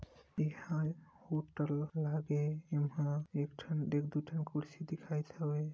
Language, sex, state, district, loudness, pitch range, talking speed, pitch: Hindi, male, Chhattisgarh, Sarguja, -38 LUFS, 150-155 Hz, 135 wpm, 150 Hz